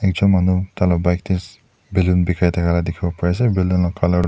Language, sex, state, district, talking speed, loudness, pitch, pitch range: Nagamese, male, Nagaland, Dimapur, 225 wpm, -18 LUFS, 90 Hz, 90-95 Hz